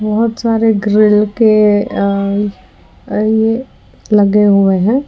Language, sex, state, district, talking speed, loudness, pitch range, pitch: Hindi, female, Karnataka, Bangalore, 105 wpm, -12 LUFS, 205-225 Hz, 210 Hz